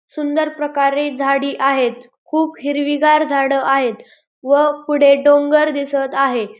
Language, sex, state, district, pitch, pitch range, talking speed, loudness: Marathi, male, Maharashtra, Pune, 285 Hz, 275-295 Hz, 120 wpm, -16 LUFS